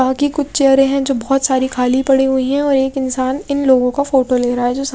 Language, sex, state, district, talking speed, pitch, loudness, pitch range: Hindi, female, Chhattisgarh, Raipur, 280 wpm, 265 Hz, -15 LUFS, 260-275 Hz